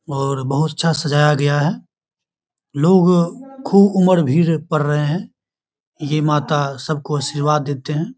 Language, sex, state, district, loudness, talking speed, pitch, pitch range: Hindi, male, Bihar, Begusarai, -17 LUFS, 145 wpm, 155 Hz, 145-175 Hz